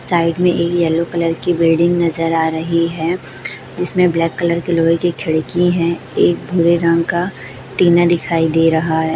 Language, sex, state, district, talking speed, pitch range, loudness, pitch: Hindi, male, Chhattisgarh, Raipur, 185 wpm, 165-175 Hz, -15 LUFS, 170 Hz